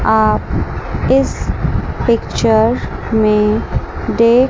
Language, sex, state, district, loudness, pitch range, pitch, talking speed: Hindi, male, Chandigarh, Chandigarh, -15 LUFS, 215-230 Hz, 220 Hz, 65 wpm